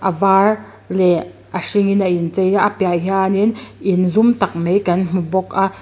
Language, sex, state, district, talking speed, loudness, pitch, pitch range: Mizo, female, Mizoram, Aizawl, 235 wpm, -17 LUFS, 190 Hz, 185-195 Hz